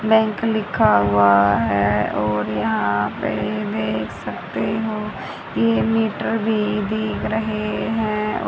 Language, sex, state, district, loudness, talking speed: Hindi, female, Haryana, Charkhi Dadri, -20 LUFS, 115 wpm